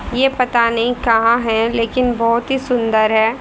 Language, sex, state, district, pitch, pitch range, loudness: Hindi, female, Haryana, Rohtak, 235 Hz, 230-245 Hz, -16 LUFS